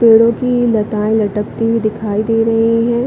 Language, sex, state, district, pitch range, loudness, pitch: Hindi, female, Chhattisgarh, Bilaspur, 215-230 Hz, -14 LUFS, 225 Hz